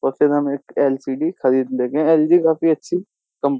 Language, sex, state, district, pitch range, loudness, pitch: Hindi, male, Uttar Pradesh, Jyotiba Phule Nagar, 135-160 Hz, -18 LUFS, 150 Hz